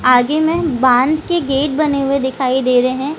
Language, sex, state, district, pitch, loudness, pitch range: Hindi, female, Bihar, Gaya, 275 Hz, -15 LUFS, 255-305 Hz